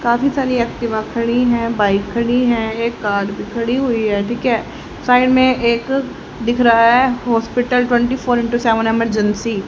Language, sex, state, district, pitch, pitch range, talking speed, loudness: Hindi, female, Haryana, Rohtak, 235 Hz, 225-245 Hz, 180 wpm, -16 LUFS